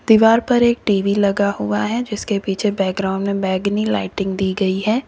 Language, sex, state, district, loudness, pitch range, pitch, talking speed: Hindi, female, Uttar Pradesh, Lalitpur, -18 LUFS, 195-220 Hz, 200 Hz, 190 wpm